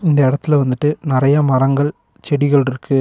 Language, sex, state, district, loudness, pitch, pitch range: Tamil, male, Tamil Nadu, Nilgiris, -16 LUFS, 140 Hz, 130-145 Hz